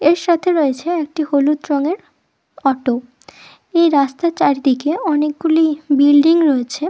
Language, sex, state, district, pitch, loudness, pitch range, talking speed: Bengali, female, West Bengal, Dakshin Dinajpur, 300 Hz, -16 LUFS, 280-330 Hz, 115 wpm